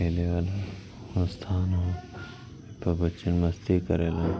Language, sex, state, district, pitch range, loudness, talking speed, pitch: Hindi, male, Uttar Pradesh, Varanasi, 85-100 Hz, -29 LUFS, 110 wpm, 90 Hz